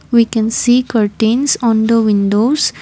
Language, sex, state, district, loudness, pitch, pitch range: English, female, Assam, Kamrup Metropolitan, -13 LUFS, 225 Hz, 220-245 Hz